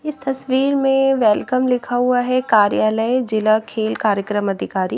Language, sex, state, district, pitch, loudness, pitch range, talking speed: Hindi, female, Haryana, Jhajjar, 245 Hz, -18 LUFS, 215-260 Hz, 145 wpm